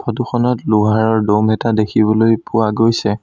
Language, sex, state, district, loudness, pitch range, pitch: Assamese, male, Assam, Sonitpur, -15 LUFS, 110-115 Hz, 110 Hz